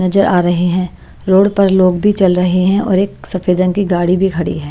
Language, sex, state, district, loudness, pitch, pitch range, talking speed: Hindi, female, Himachal Pradesh, Shimla, -13 LUFS, 185 Hz, 180-195 Hz, 255 wpm